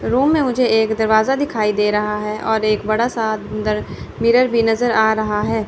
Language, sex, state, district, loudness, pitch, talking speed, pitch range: Hindi, female, Chandigarh, Chandigarh, -17 LUFS, 220 Hz, 210 wpm, 215-235 Hz